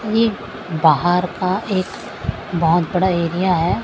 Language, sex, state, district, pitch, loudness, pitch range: Hindi, female, Maharashtra, Mumbai Suburban, 180 Hz, -19 LUFS, 170-190 Hz